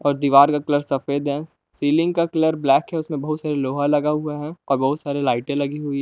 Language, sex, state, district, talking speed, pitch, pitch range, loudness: Hindi, male, Jharkhand, Palamu, 250 wpm, 145 Hz, 140-155 Hz, -21 LUFS